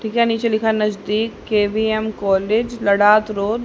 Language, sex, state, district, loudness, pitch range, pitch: Hindi, male, Haryana, Rohtak, -18 LUFS, 205-225 Hz, 215 Hz